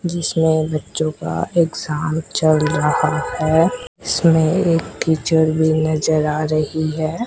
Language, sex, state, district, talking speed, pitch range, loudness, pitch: Hindi, female, Rajasthan, Bikaner, 125 wpm, 155-165 Hz, -18 LUFS, 160 Hz